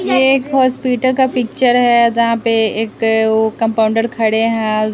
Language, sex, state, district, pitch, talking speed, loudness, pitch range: Hindi, female, Bihar, West Champaran, 230 Hz, 160 wpm, -14 LUFS, 220-250 Hz